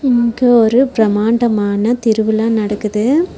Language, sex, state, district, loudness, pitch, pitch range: Tamil, female, Tamil Nadu, Nilgiris, -14 LUFS, 225 Hz, 215-245 Hz